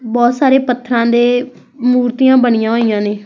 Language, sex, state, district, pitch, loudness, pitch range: Punjabi, female, Punjab, Fazilka, 245 Hz, -13 LUFS, 230-250 Hz